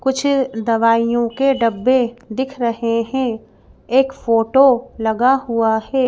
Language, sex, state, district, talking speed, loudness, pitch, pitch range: Hindi, female, Madhya Pradesh, Bhopal, 120 wpm, -17 LUFS, 240 Hz, 230-265 Hz